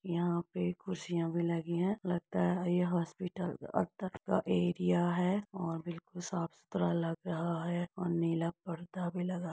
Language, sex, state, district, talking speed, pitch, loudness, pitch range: Hindi, female, Uttar Pradesh, Etah, 155 wpm, 175 Hz, -35 LUFS, 170-180 Hz